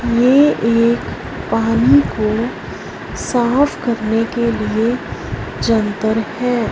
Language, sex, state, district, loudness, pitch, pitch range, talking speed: Hindi, female, Punjab, Fazilka, -16 LUFS, 230 Hz, 225-245 Hz, 90 wpm